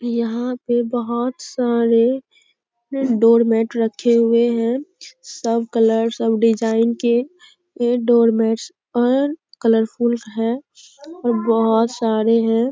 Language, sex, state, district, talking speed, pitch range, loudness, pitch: Hindi, female, Bihar, Araria, 100 wpm, 230-250 Hz, -18 LUFS, 235 Hz